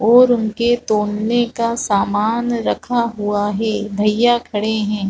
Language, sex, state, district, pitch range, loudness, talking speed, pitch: Hindi, female, Chhattisgarh, Balrampur, 210-235 Hz, -17 LUFS, 130 wpm, 220 Hz